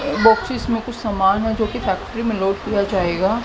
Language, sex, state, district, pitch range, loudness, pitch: Hindi, female, Haryana, Jhajjar, 195-230 Hz, -19 LUFS, 220 Hz